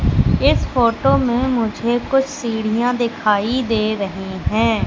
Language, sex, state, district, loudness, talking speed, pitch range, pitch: Hindi, female, Madhya Pradesh, Katni, -18 LUFS, 125 wpm, 215-245 Hz, 230 Hz